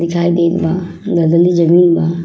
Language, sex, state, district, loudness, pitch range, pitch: Bhojpuri, female, Uttar Pradesh, Ghazipur, -13 LUFS, 170-175 Hz, 170 Hz